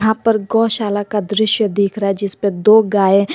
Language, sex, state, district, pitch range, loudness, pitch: Hindi, female, Jharkhand, Garhwa, 200-220 Hz, -15 LUFS, 210 Hz